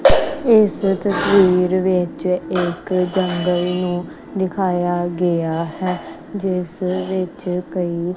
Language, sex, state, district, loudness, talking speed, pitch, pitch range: Punjabi, female, Punjab, Kapurthala, -19 LUFS, 90 wpm, 180 Hz, 175-185 Hz